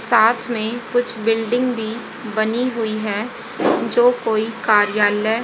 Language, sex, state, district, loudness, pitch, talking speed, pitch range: Hindi, female, Haryana, Charkhi Dadri, -19 LUFS, 225 Hz, 120 wpm, 220-240 Hz